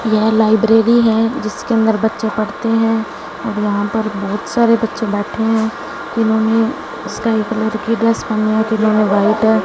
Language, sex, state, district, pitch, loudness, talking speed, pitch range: Hindi, female, Punjab, Fazilka, 220 Hz, -15 LUFS, 160 wpm, 215-225 Hz